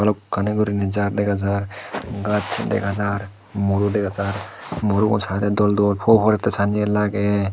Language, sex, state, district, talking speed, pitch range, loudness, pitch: Chakma, male, Tripura, Dhalai, 145 wpm, 100-105 Hz, -21 LUFS, 100 Hz